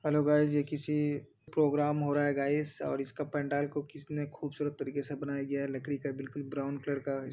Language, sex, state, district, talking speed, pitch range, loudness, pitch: Hindi, male, Uttar Pradesh, Deoria, 240 wpm, 140-150 Hz, -33 LUFS, 145 Hz